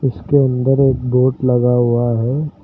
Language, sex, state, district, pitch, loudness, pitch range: Hindi, male, Uttar Pradesh, Lucknow, 125 Hz, -15 LUFS, 120-135 Hz